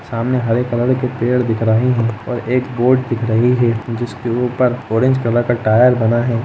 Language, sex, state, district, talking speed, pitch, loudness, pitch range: Hindi, male, Jharkhand, Jamtara, 205 wpm, 120 Hz, -16 LUFS, 115-125 Hz